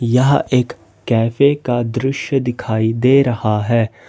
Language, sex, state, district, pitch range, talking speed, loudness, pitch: Hindi, male, Jharkhand, Ranchi, 115-135 Hz, 130 wpm, -16 LUFS, 120 Hz